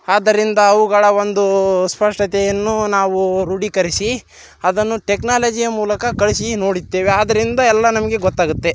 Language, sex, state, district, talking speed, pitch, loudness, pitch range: Kannada, male, Karnataka, Raichur, 110 wpm, 205 Hz, -15 LUFS, 195-220 Hz